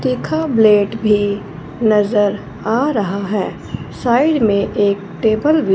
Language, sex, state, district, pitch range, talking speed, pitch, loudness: Hindi, female, Punjab, Fazilka, 205-245 Hz, 125 wpm, 215 Hz, -16 LUFS